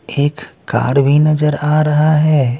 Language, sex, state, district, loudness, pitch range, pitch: Hindi, male, Bihar, Patna, -14 LUFS, 140-155 Hz, 150 Hz